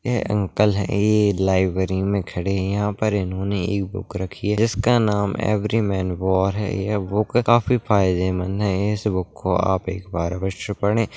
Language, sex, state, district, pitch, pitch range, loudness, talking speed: Hindi, male, Rajasthan, Churu, 100 Hz, 95-105 Hz, -21 LUFS, 175 wpm